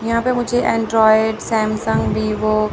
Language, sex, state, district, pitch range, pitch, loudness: Hindi, female, Chandigarh, Chandigarh, 215-230 Hz, 220 Hz, -17 LUFS